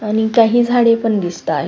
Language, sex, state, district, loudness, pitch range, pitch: Marathi, female, Maharashtra, Sindhudurg, -14 LUFS, 215-235 Hz, 225 Hz